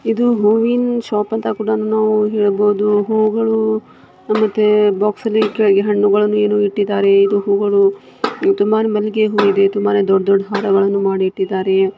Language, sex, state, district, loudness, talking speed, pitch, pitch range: Kannada, female, Karnataka, Shimoga, -15 LUFS, 125 wpm, 210 Hz, 200-215 Hz